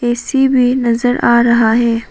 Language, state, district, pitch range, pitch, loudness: Hindi, Arunachal Pradesh, Papum Pare, 235-250 Hz, 240 Hz, -12 LUFS